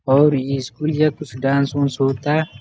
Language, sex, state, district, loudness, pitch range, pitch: Bhojpuri, male, Uttar Pradesh, Gorakhpur, -19 LUFS, 135-150 Hz, 140 Hz